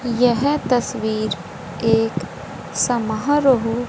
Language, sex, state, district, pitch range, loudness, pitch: Hindi, female, Haryana, Rohtak, 215-245 Hz, -20 LUFS, 225 Hz